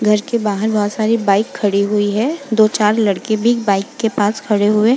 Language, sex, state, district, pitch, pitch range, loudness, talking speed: Hindi, female, Uttar Pradesh, Jalaun, 215 Hz, 205-225 Hz, -16 LUFS, 230 wpm